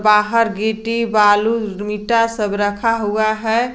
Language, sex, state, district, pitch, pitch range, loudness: Hindi, female, Jharkhand, Garhwa, 220 Hz, 210-230 Hz, -17 LUFS